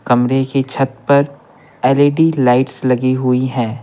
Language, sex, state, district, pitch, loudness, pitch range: Hindi, male, Bihar, Patna, 130 Hz, -15 LUFS, 125-135 Hz